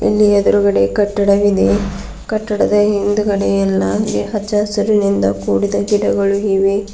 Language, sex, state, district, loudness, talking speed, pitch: Kannada, female, Karnataka, Bidar, -15 LUFS, 85 wpm, 200 Hz